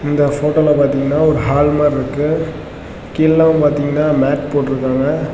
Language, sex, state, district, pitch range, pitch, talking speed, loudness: Tamil, male, Tamil Nadu, Namakkal, 145-155 Hz, 145 Hz, 135 wpm, -14 LUFS